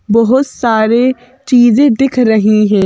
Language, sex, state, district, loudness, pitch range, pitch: Hindi, female, Madhya Pradesh, Bhopal, -10 LUFS, 220-260 Hz, 240 Hz